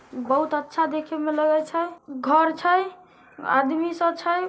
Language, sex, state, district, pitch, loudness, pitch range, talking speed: Magahi, male, Bihar, Samastipur, 315 Hz, -23 LUFS, 300-340 Hz, 135 wpm